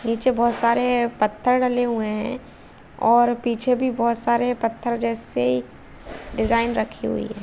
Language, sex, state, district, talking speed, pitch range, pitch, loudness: Hindi, female, Chhattisgarh, Bilaspur, 155 wpm, 230-245 Hz, 235 Hz, -22 LUFS